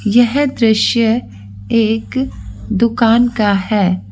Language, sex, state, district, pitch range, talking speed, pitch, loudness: Hindi, female, Bihar, East Champaran, 200-235 Hz, 85 wpm, 225 Hz, -14 LUFS